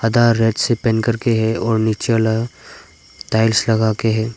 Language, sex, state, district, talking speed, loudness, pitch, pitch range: Hindi, male, Arunachal Pradesh, Papum Pare, 180 wpm, -17 LUFS, 115 Hz, 110-115 Hz